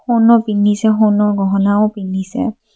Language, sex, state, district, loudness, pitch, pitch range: Assamese, female, Assam, Kamrup Metropolitan, -14 LUFS, 210 Hz, 205-225 Hz